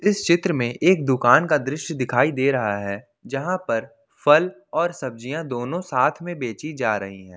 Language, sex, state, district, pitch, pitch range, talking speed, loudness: Hindi, male, Jharkhand, Ranchi, 135 Hz, 120-165 Hz, 185 wpm, -22 LUFS